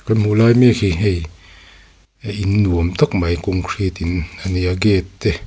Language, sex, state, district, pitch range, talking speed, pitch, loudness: Mizo, male, Mizoram, Aizawl, 90-105 Hz, 185 wpm, 95 Hz, -17 LUFS